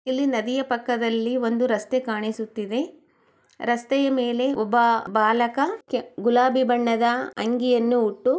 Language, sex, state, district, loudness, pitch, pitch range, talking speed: Kannada, female, Karnataka, Chamarajanagar, -23 LUFS, 240 Hz, 230-260 Hz, 85 wpm